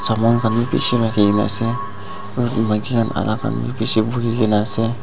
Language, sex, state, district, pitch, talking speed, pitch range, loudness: Nagamese, male, Nagaland, Dimapur, 110 Hz, 215 wpm, 105-120 Hz, -18 LUFS